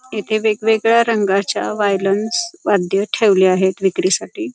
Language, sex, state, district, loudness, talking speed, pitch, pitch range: Marathi, female, Maharashtra, Pune, -16 LUFS, 105 wpm, 210 Hz, 195-225 Hz